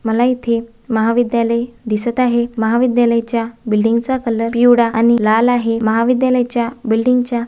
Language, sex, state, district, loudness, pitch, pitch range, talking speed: Marathi, female, Maharashtra, Dhule, -15 LUFS, 235 Hz, 230-245 Hz, 130 wpm